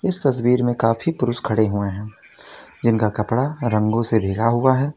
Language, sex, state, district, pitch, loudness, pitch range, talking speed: Hindi, male, Uttar Pradesh, Lalitpur, 115 Hz, -19 LUFS, 110-125 Hz, 180 wpm